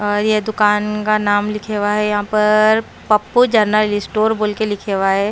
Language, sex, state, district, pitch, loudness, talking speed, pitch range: Hindi, female, Haryana, Rohtak, 210 Hz, -16 LUFS, 205 wpm, 205-215 Hz